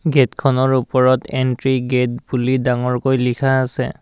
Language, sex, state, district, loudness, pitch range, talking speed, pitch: Assamese, male, Assam, Kamrup Metropolitan, -17 LUFS, 125-130 Hz, 135 wpm, 130 Hz